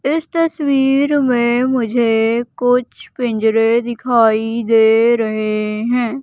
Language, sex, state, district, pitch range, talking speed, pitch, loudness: Hindi, female, Madhya Pradesh, Umaria, 225-265 Hz, 95 wpm, 235 Hz, -15 LUFS